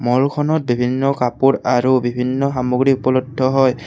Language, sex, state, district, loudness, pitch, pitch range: Assamese, male, Assam, Kamrup Metropolitan, -17 LUFS, 130 Hz, 125-135 Hz